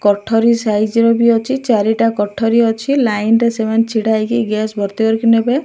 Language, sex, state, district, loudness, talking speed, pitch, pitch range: Odia, male, Odisha, Malkangiri, -14 LUFS, 170 wpm, 225 Hz, 215-235 Hz